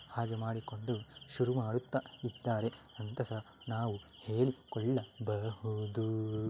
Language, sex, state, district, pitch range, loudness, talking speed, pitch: Kannada, male, Karnataka, Dakshina Kannada, 110-125 Hz, -38 LUFS, 90 wpm, 115 Hz